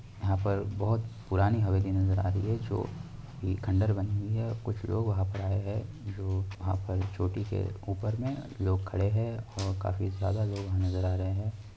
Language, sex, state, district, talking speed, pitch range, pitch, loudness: Hindi, male, Bihar, Saharsa, 200 wpm, 95-110 Hz, 100 Hz, -31 LUFS